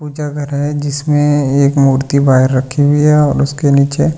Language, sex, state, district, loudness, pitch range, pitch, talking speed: Hindi, male, Delhi, New Delhi, -12 LUFS, 140-150 Hz, 145 Hz, 215 wpm